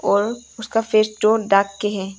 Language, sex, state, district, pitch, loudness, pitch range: Hindi, female, Arunachal Pradesh, Longding, 215 Hz, -19 LUFS, 200-220 Hz